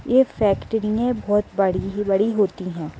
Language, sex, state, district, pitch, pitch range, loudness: Hindi, female, Uttar Pradesh, Gorakhpur, 205 Hz, 195-225 Hz, -21 LUFS